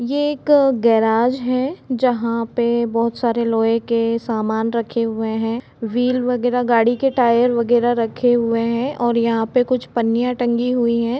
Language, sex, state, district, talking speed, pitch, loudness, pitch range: Hindi, female, Chhattisgarh, Kabirdham, 165 wpm, 235 Hz, -18 LUFS, 230-250 Hz